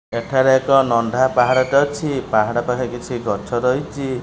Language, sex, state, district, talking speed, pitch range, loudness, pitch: Odia, male, Odisha, Khordha, 140 wpm, 120-135 Hz, -18 LUFS, 125 Hz